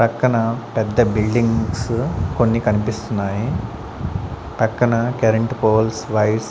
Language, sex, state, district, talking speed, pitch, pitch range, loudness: Telugu, male, Andhra Pradesh, Sri Satya Sai, 90 wpm, 115 Hz, 110-115 Hz, -19 LUFS